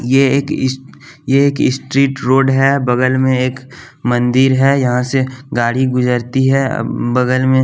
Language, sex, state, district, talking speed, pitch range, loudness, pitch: Hindi, male, Bihar, West Champaran, 165 wpm, 125-135 Hz, -14 LUFS, 130 Hz